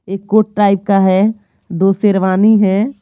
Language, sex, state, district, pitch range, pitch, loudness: Hindi, female, Bihar, Patna, 195-210 Hz, 200 Hz, -13 LUFS